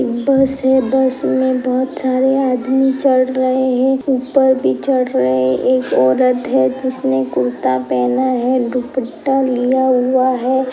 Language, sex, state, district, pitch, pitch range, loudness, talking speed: Hindi, female, Uttar Pradesh, Etah, 255 Hz, 245-265 Hz, -15 LUFS, 145 wpm